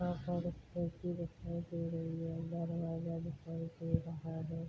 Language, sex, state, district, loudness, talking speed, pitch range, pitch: Hindi, female, Bihar, Darbhanga, -41 LUFS, 155 wpm, 165-170 Hz, 165 Hz